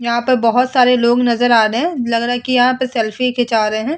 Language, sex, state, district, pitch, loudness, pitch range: Hindi, female, Uttar Pradesh, Muzaffarnagar, 245 Hz, -15 LUFS, 230-250 Hz